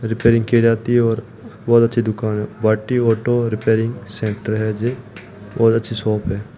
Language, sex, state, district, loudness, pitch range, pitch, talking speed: Hindi, male, Rajasthan, Bikaner, -18 LUFS, 110-115 Hz, 115 Hz, 175 wpm